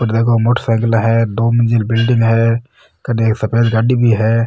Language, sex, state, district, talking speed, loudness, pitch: Marwari, male, Rajasthan, Nagaur, 200 wpm, -14 LUFS, 115 Hz